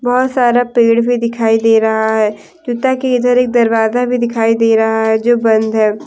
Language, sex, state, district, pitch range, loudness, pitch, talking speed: Hindi, female, Jharkhand, Deoghar, 220-245 Hz, -13 LUFS, 230 Hz, 205 wpm